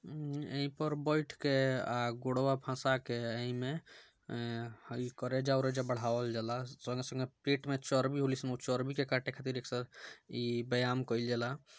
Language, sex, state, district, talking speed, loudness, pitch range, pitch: Bhojpuri, male, Bihar, Gopalganj, 180 wpm, -36 LUFS, 120-135 Hz, 130 Hz